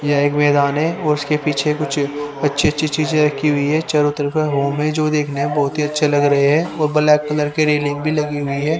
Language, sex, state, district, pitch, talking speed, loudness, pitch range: Hindi, male, Haryana, Rohtak, 150 Hz, 240 wpm, -17 LUFS, 145-150 Hz